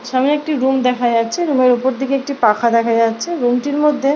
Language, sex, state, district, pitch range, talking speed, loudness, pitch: Bengali, female, West Bengal, Paschim Medinipur, 240-280 Hz, 230 wpm, -16 LUFS, 260 Hz